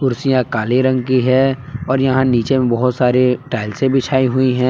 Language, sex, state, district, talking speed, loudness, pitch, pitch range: Hindi, male, Jharkhand, Palamu, 190 wpm, -16 LUFS, 130 Hz, 125-130 Hz